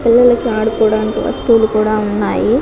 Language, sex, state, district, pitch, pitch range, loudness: Telugu, female, Telangana, Karimnagar, 220 Hz, 215-235 Hz, -14 LUFS